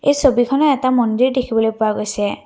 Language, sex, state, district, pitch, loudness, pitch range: Assamese, female, Assam, Kamrup Metropolitan, 245 Hz, -16 LUFS, 220-265 Hz